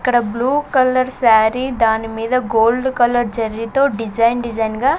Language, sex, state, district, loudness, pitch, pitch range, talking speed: Telugu, female, Andhra Pradesh, Sri Satya Sai, -16 LUFS, 240 Hz, 225-255 Hz, 155 wpm